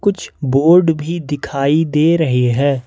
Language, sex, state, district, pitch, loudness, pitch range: Hindi, male, Jharkhand, Ranchi, 150 Hz, -15 LUFS, 140-165 Hz